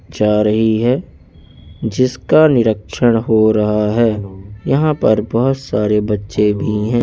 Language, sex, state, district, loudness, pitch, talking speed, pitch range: Hindi, male, Madhya Pradesh, Bhopal, -15 LUFS, 110 Hz, 130 wpm, 105-120 Hz